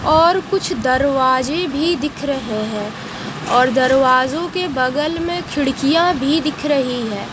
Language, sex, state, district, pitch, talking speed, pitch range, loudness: Hindi, female, Haryana, Jhajjar, 280 Hz, 140 wpm, 255-320 Hz, -17 LUFS